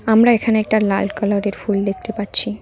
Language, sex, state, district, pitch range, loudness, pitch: Bengali, female, West Bengal, Cooch Behar, 200-220 Hz, -17 LUFS, 205 Hz